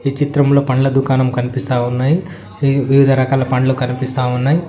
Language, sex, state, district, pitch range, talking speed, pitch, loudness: Telugu, male, Telangana, Mahabubabad, 130-140 Hz, 140 wpm, 130 Hz, -15 LUFS